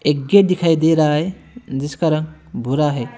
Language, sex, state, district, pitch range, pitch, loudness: Hindi, male, West Bengal, Alipurduar, 145-165 Hz, 155 Hz, -17 LUFS